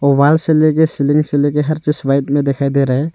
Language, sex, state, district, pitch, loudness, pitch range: Hindi, male, Arunachal Pradesh, Longding, 145 Hz, -14 LUFS, 140-155 Hz